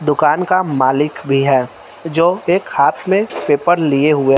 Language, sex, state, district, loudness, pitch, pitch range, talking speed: Hindi, female, Bihar, West Champaran, -15 LUFS, 150 Hz, 135-175 Hz, 165 wpm